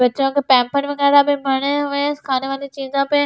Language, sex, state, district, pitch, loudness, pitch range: Hindi, female, Delhi, New Delhi, 280 Hz, -18 LUFS, 270-285 Hz